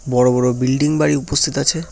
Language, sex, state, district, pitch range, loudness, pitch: Bengali, male, West Bengal, Cooch Behar, 125-150 Hz, -16 LUFS, 140 Hz